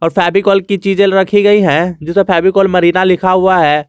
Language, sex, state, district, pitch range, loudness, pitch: Hindi, male, Jharkhand, Garhwa, 180-195 Hz, -11 LUFS, 190 Hz